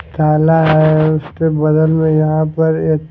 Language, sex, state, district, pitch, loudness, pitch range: Hindi, male, Punjab, Fazilka, 155 Hz, -13 LUFS, 155-160 Hz